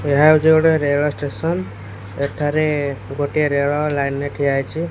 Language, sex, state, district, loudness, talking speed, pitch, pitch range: Odia, male, Odisha, Khordha, -18 LUFS, 145 wpm, 145 Hz, 140-150 Hz